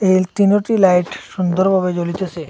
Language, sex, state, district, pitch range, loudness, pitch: Bengali, male, Assam, Hailakandi, 180-190 Hz, -16 LUFS, 185 Hz